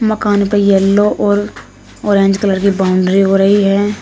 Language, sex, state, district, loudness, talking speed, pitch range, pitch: Hindi, female, Uttar Pradesh, Shamli, -12 LUFS, 165 wpm, 195-205 Hz, 200 Hz